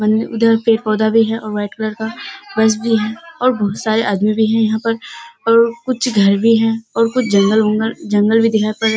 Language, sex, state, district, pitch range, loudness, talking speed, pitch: Hindi, female, Bihar, Kishanganj, 215-230 Hz, -15 LUFS, 215 wpm, 225 Hz